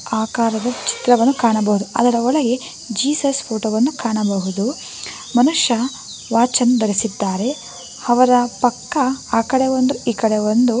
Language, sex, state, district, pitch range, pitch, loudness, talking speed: Kannada, female, Karnataka, Bangalore, 220-260 Hz, 240 Hz, -18 LUFS, 110 wpm